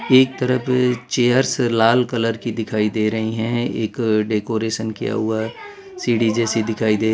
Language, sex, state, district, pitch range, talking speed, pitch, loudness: Hindi, male, Gujarat, Valsad, 110-125 Hz, 170 wpm, 115 Hz, -19 LUFS